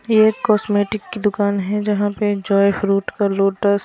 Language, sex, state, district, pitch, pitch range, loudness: Hindi, female, Himachal Pradesh, Shimla, 205 Hz, 200-210 Hz, -18 LUFS